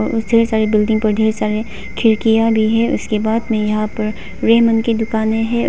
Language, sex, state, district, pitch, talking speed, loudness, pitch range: Hindi, female, Arunachal Pradesh, Papum Pare, 220 Hz, 200 wpm, -16 LUFS, 215-225 Hz